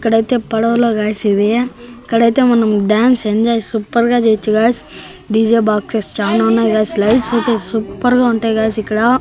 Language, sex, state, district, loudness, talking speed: Telugu, male, Andhra Pradesh, Annamaya, -14 LUFS, 155 wpm